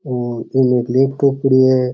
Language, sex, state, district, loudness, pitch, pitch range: Rajasthani, male, Rajasthan, Churu, -15 LUFS, 130 Hz, 125-135 Hz